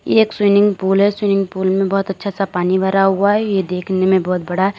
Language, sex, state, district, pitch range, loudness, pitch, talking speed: Hindi, female, Uttar Pradesh, Lalitpur, 190-200 Hz, -16 LUFS, 195 Hz, 265 wpm